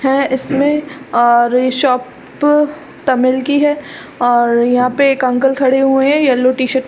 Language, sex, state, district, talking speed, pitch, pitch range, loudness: Hindi, female, Chhattisgarh, Balrampur, 175 wpm, 265 Hz, 250-285 Hz, -13 LUFS